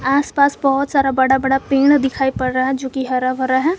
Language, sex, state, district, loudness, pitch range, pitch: Hindi, female, Jharkhand, Garhwa, -16 LUFS, 260-280 Hz, 270 Hz